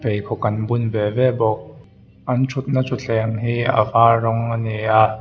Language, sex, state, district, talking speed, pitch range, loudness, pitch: Mizo, male, Mizoram, Aizawl, 175 wpm, 110-125 Hz, -19 LUFS, 115 Hz